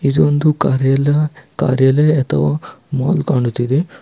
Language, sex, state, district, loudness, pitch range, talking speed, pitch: Kannada, male, Karnataka, Bidar, -16 LUFS, 130-150 Hz, 90 wpm, 140 Hz